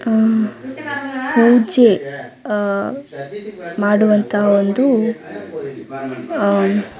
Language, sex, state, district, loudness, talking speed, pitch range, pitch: Kannada, female, Karnataka, Dakshina Kannada, -16 LUFS, 50 wpm, 200-245 Hz, 215 Hz